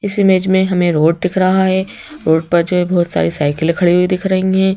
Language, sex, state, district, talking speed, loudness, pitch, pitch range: Hindi, female, Madhya Pradesh, Bhopal, 265 wpm, -14 LUFS, 180 Hz, 170-190 Hz